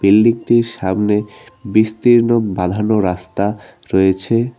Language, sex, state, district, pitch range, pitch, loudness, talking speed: Bengali, male, West Bengal, Cooch Behar, 95-115 Hz, 105 Hz, -16 LUFS, 80 wpm